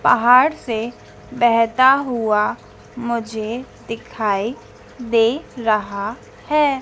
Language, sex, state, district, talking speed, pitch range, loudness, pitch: Hindi, female, Madhya Pradesh, Dhar, 80 wpm, 220-250 Hz, -18 LUFS, 235 Hz